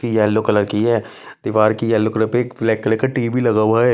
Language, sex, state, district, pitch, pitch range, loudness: Hindi, male, Bihar, West Champaran, 110 Hz, 110-120 Hz, -17 LUFS